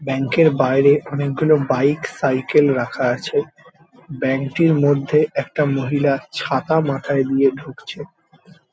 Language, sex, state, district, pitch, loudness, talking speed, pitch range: Bengali, male, West Bengal, Jalpaiguri, 140 Hz, -18 LUFS, 115 wpm, 135-155 Hz